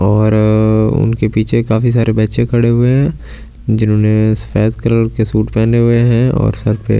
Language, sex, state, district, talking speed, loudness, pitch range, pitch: Hindi, male, Delhi, New Delhi, 180 wpm, -13 LUFS, 110-120 Hz, 110 Hz